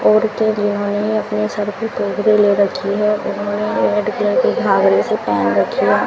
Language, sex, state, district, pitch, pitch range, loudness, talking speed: Hindi, female, Rajasthan, Bikaner, 210 Hz, 205-215 Hz, -16 LUFS, 180 wpm